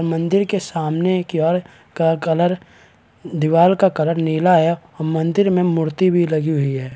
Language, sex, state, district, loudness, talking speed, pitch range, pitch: Hindi, male, Chhattisgarh, Balrampur, -18 LUFS, 170 wpm, 155-180 Hz, 165 Hz